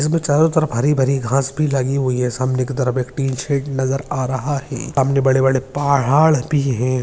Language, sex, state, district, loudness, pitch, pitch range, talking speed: Hindi, male, Uttarakhand, Tehri Garhwal, -18 LUFS, 135 Hz, 130-145 Hz, 220 wpm